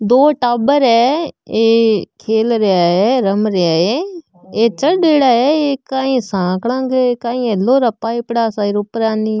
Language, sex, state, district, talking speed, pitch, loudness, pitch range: Marwari, female, Rajasthan, Nagaur, 155 wpm, 235 Hz, -14 LUFS, 215-265 Hz